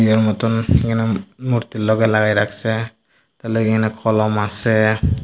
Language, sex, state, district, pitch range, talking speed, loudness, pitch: Bengali, male, Tripura, Dhalai, 110-115 Hz, 135 wpm, -18 LUFS, 110 Hz